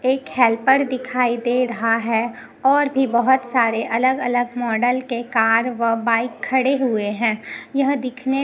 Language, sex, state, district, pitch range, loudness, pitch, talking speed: Hindi, female, Chhattisgarh, Raipur, 230-260 Hz, -19 LUFS, 245 Hz, 155 wpm